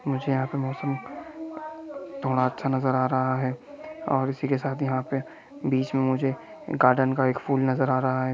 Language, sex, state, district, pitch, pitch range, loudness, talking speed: Hindi, male, Jharkhand, Sahebganj, 135 Hz, 130-140 Hz, -26 LUFS, 195 wpm